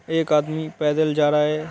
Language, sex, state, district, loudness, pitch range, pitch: Hindi, male, Uttar Pradesh, Hamirpur, -21 LUFS, 150-155 Hz, 155 Hz